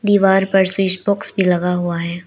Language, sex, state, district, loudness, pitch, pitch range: Hindi, female, Arunachal Pradesh, Lower Dibang Valley, -16 LUFS, 190 Hz, 180-195 Hz